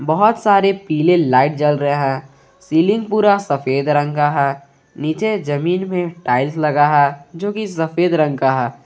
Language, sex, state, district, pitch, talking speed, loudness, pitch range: Hindi, male, Jharkhand, Garhwa, 150 Hz, 170 wpm, -16 LUFS, 140-180 Hz